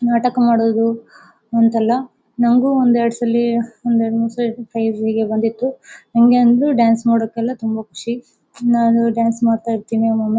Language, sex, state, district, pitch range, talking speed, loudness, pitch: Kannada, female, Karnataka, Dakshina Kannada, 225-240 Hz, 145 wpm, -17 LUFS, 230 Hz